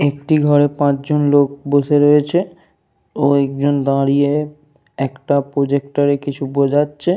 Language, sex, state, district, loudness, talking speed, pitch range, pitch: Bengali, male, Jharkhand, Jamtara, -16 LUFS, 115 wpm, 140-150 Hz, 145 Hz